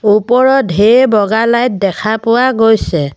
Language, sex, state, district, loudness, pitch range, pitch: Assamese, female, Assam, Sonitpur, -11 LUFS, 205-245 Hz, 225 Hz